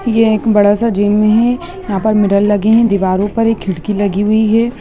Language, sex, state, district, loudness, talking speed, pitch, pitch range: Hindi, male, Bihar, Gaya, -13 LUFS, 225 wpm, 215 Hz, 205-225 Hz